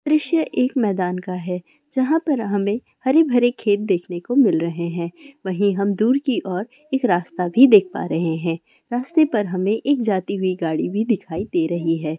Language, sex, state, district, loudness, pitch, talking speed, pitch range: Hindi, female, Bihar, Purnia, -20 LUFS, 205 Hz, 190 wpm, 180-255 Hz